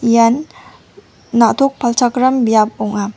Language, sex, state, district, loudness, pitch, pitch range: Garo, female, Meghalaya, West Garo Hills, -14 LUFS, 235 Hz, 220-250 Hz